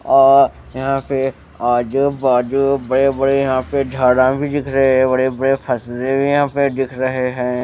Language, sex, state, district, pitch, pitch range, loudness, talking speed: Hindi, male, Bihar, West Champaran, 135 Hz, 130-135 Hz, -16 LUFS, 180 wpm